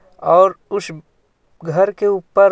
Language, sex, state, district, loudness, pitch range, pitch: Hindi, male, Jharkhand, Ranchi, -16 LUFS, 165-200 Hz, 190 Hz